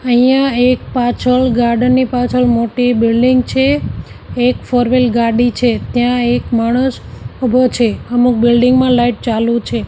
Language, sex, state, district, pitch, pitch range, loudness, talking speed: Gujarati, female, Gujarat, Gandhinagar, 245 Hz, 240-255 Hz, -13 LUFS, 150 wpm